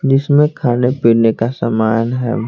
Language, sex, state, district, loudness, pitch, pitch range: Hindi, male, Bihar, Patna, -14 LUFS, 120 Hz, 115-135 Hz